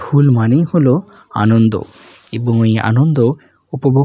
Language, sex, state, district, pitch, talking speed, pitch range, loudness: Bengali, male, West Bengal, Jalpaiguri, 125 Hz, 120 wpm, 115-145 Hz, -14 LUFS